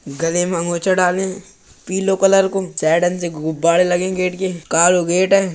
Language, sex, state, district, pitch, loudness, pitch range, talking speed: Bundeli, male, Uttar Pradesh, Budaun, 180 Hz, -17 LUFS, 170-190 Hz, 205 wpm